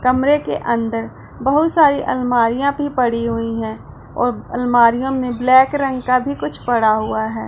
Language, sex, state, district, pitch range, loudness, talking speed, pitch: Hindi, female, Punjab, Pathankot, 230-270 Hz, -17 LUFS, 170 wpm, 245 Hz